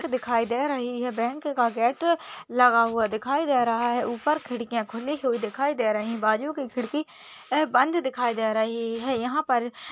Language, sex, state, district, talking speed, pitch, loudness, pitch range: Hindi, female, West Bengal, Dakshin Dinajpur, 185 wpm, 245 Hz, -25 LUFS, 230-280 Hz